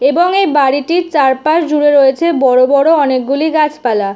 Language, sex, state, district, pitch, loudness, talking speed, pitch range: Bengali, female, West Bengal, Jhargram, 290 Hz, -11 LUFS, 185 wpm, 265-315 Hz